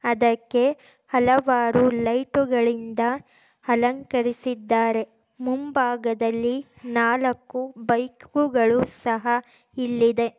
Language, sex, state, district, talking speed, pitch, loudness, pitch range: Kannada, female, Karnataka, Chamarajanagar, 60 wpm, 245 Hz, -23 LUFS, 235-255 Hz